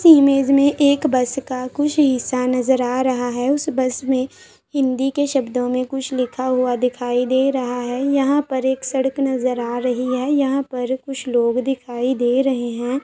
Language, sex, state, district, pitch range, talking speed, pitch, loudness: Hindi, female, Uttar Pradesh, Etah, 250-275 Hz, 195 wpm, 260 Hz, -19 LUFS